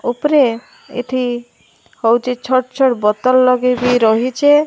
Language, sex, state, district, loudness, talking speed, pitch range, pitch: Odia, female, Odisha, Malkangiri, -15 LUFS, 105 wpm, 240-260 Hz, 250 Hz